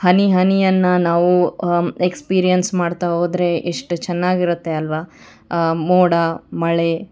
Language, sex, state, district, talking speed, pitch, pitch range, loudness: Kannada, female, Karnataka, Bangalore, 110 wpm, 175 Hz, 170-180 Hz, -17 LUFS